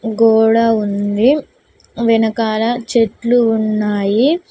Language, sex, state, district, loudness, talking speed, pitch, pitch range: Telugu, female, Telangana, Mahabubabad, -14 LUFS, 65 wpm, 225 Hz, 215-235 Hz